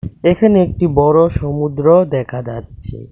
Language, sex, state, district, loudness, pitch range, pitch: Bengali, male, Tripura, West Tripura, -13 LUFS, 120-170 Hz, 145 Hz